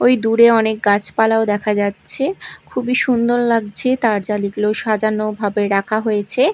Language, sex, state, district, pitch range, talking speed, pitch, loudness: Bengali, female, Odisha, Malkangiri, 210-235 Hz, 130 wpm, 215 Hz, -17 LUFS